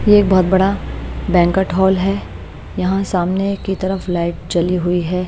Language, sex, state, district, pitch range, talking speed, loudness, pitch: Hindi, female, Bihar, Patna, 175-190 Hz, 170 wpm, -17 LUFS, 185 Hz